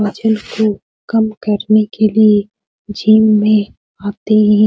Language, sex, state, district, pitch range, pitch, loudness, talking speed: Hindi, female, Bihar, Supaul, 210-215 Hz, 215 Hz, -13 LUFS, 130 wpm